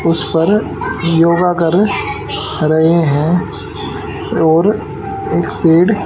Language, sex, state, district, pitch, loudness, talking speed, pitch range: Hindi, male, Haryana, Rohtak, 170 Hz, -14 LUFS, 90 wpm, 165-180 Hz